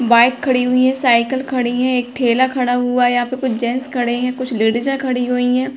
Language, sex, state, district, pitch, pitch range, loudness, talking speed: Hindi, female, Uttar Pradesh, Hamirpur, 250 Hz, 245-255 Hz, -16 LUFS, 240 wpm